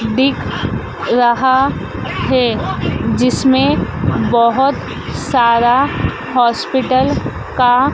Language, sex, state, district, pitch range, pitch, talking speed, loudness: Hindi, female, Madhya Pradesh, Dhar, 240-265 Hz, 255 Hz, 60 wpm, -15 LUFS